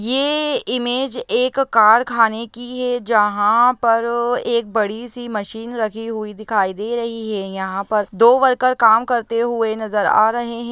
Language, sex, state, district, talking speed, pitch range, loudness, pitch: Hindi, female, Bihar, Begusarai, 160 wpm, 215-245 Hz, -18 LUFS, 230 Hz